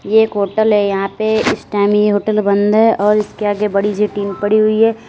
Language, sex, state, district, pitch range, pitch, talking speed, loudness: Hindi, female, Uttar Pradesh, Lalitpur, 205-215 Hz, 210 Hz, 225 wpm, -14 LUFS